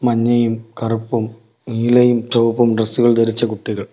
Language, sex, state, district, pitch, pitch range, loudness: Malayalam, male, Kerala, Kollam, 115 Hz, 115-120 Hz, -16 LUFS